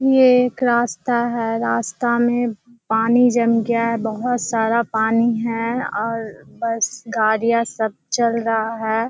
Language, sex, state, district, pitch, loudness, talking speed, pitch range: Hindi, female, Bihar, Kishanganj, 230 Hz, -19 LUFS, 140 wpm, 225-240 Hz